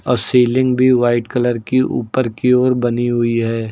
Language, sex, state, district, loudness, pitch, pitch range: Hindi, male, Uttar Pradesh, Lucknow, -16 LUFS, 120 Hz, 120-125 Hz